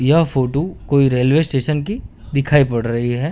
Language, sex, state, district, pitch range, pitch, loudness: Hindi, male, Gujarat, Gandhinagar, 130-150 Hz, 140 Hz, -17 LUFS